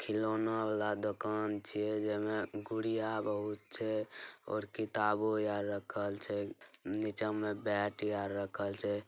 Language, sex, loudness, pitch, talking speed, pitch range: Angika, male, -37 LUFS, 105 Hz, 120 wpm, 105-110 Hz